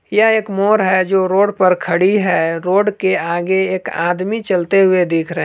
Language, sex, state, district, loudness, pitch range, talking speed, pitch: Hindi, male, Jharkhand, Palamu, -15 LUFS, 180-200 Hz, 200 wpm, 190 Hz